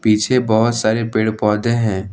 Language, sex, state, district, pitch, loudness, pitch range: Hindi, male, Jharkhand, Ranchi, 110 Hz, -17 LUFS, 105-115 Hz